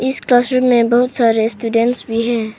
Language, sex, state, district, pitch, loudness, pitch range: Hindi, female, Arunachal Pradesh, Papum Pare, 235 Hz, -14 LUFS, 230-250 Hz